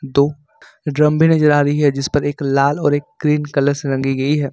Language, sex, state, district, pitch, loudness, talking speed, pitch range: Hindi, male, Jharkhand, Ranchi, 145 Hz, -16 LUFS, 250 wpm, 140-150 Hz